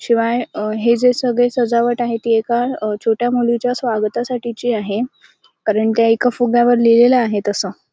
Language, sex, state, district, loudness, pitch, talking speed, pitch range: Marathi, female, Maharashtra, Sindhudurg, -16 LUFS, 235 Hz, 165 wpm, 225-245 Hz